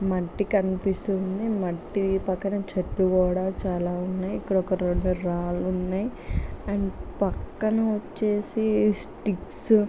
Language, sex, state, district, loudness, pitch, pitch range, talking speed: Telugu, female, Andhra Pradesh, Visakhapatnam, -26 LUFS, 190 Hz, 185-205 Hz, 105 wpm